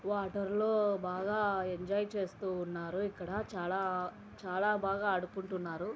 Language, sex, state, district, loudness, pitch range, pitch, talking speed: Telugu, female, Andhra Pradesh, Anantapur, -35 LUFS, 180-205 Hz, 195 Hz, 110 wpm